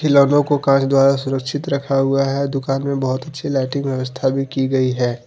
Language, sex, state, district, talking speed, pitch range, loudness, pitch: Hindi, male, Jharkhand, Deoghar, 205 wpm, 135-140 Hz, -18 LUFS, 135 Hz